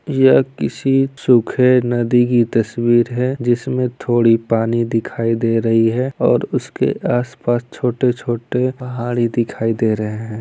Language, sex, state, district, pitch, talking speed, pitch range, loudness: Hindi, male, Bihar, Saran, 120 Hz, 130 wpm, 115-125 Hz, -17 LUFS